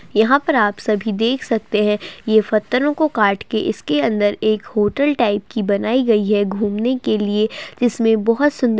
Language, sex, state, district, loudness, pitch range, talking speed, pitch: Hindi, female, Uttar Pradesh, Hamirpur, -18 LUFS, 210-245 Hz, 190 wpm, 220 Hz